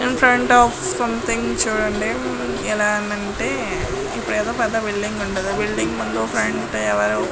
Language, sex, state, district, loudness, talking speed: Telugu, female, Andhra Pradesh, Guntur, -20 LUFS, 125 wpm